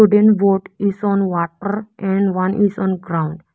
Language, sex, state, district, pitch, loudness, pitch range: English, female, Arunachal Pradesh, Lower Dibang Valley, 195 Hz, -18 LUFS, 185-205 Hz